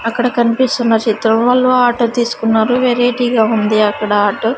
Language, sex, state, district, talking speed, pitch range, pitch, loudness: Telugu, female, Andhra Pradesh, Sri Satya Sai, 130 wpm, 220-245 Hz, 235 Hz, -13 LUFS